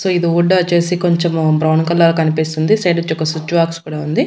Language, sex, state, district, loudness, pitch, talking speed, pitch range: Telugu, female, Andhra Pradesh, Annamaya, -15 LUFS, 170 Hz, 180 wpm, 155-175 Hz